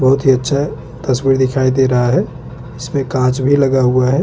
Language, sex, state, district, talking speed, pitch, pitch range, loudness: Hindi, male, Chhattisgarh, Bastar, 140 wpm, 130 Hz, 125-135 Hz, -15 LUFS